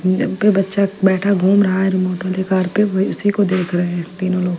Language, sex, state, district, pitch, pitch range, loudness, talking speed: Hindi, female, Punjab, Fazilka, 190 Hz, 185-200 Hz, -17 LUFS, 250 wpm